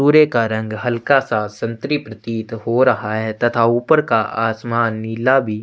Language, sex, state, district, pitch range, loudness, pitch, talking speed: Hindi, male, Chhattisgarh, Sukma, 110-130 Hz, -18 LUFS, 115 Hz, 170 wpm